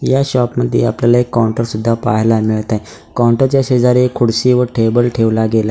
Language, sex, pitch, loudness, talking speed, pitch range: Marathi, male, 115 Hz, -14 LUFS, 200 wpm, 110-125 Hz